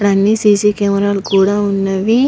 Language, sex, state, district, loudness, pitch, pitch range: Telugu, male, Andhra Pradesh, Visakhapatnam, -13 LUFS, 200 Hz, 195-210 Hz